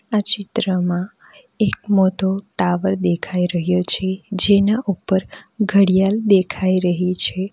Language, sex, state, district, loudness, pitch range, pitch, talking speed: Gujarati, female, Gujarat, Valsad, -18 LUFS, 180-200 Hz, 190 Hz, 110 wpm